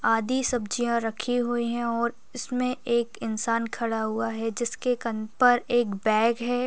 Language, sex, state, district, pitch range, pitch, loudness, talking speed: Hindi, male, Chhattisgarh, Raigarh, 225-245 Hz, 235 Hz, -26 LUFS, 160 wpm